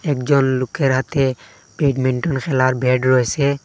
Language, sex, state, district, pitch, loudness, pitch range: Bengali, male, Assam, Hailakandi, 135 Hz, -18 LUFS, 130-140 Hz